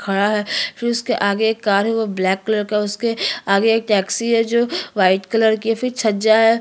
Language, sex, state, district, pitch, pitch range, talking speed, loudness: Hindi, female, Chhattisgarh, Sukma, 220 Hz, 200-225 Hz, 245 wpm, -18 LUFS